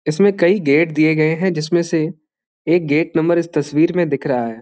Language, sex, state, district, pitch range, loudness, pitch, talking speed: Hindi, male, Bihar, Bhagalpur, 150-170 Hz, -17 LUFS, 160 Hz, 220 wpm